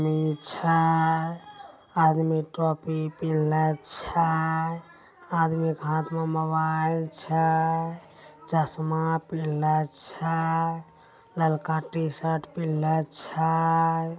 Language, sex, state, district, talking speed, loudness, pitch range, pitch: Angika, male, Bihar, Begusarai, 90 wpm, -26 LUFS, 155-165 Hz, 160 Hz